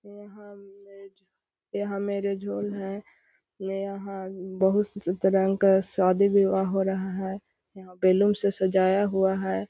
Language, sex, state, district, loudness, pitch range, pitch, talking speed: Magahi, female, Bihar, Gaya, -25 LUFS, 190-200 Hz, 195 Hz, 125 wpm